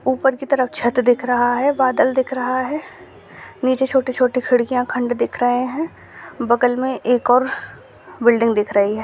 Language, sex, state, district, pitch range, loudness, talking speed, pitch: Hindi, female, Bihar, Jamui, 245-260 Hz, -18 LUFS, 170 wpm, 250 Hz